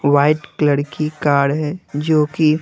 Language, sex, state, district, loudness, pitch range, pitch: Hindi, male, Bihar, Patna, -17 LUFS, 145-155 Hz, 150 Hz